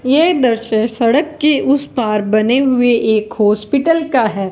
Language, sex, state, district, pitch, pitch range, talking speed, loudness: Hindi, female, Rajasthan, Bikaner, 245 Hz, 220-280 Hz, 160 wpm, -14 LUFS